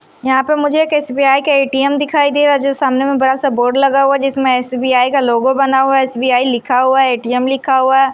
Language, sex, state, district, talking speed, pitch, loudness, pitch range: Hindi, female, Himachal Pradesh, Shimla, 250 wpm, 270 Hz, -13 LUFS, 260-275 Hz